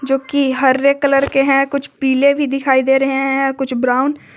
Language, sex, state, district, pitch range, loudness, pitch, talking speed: Hindi, female, Jharkhand, Garhwa, 265-280 Hz, -15 LUFS, 270 Hz, 220 wpm